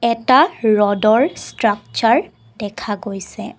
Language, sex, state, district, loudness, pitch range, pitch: Assamese, female, Assam, Kamrup Metropolitan, -17 LUFS, 205-235 Hz, 220 Hz